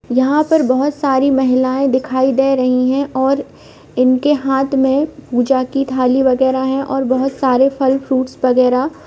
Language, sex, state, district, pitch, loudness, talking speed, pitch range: Hindi, female, Uttar Pradesh, Budaun, 265 Hz, -15 LUFS, 165 wpm, 255-275 Hz